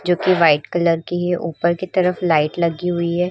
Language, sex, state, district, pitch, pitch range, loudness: Hindi, female, Uttar Pradesh, Varanasi, 175 Hz, 170-180 Hz, -18 LUFS